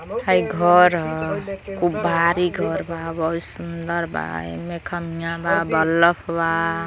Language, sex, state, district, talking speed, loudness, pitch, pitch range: Bhojpuri, female, Uttar Pradesh, Gorakhpur, 130 wpm, -21 LUFS, 170 Hz, 165-175 Hz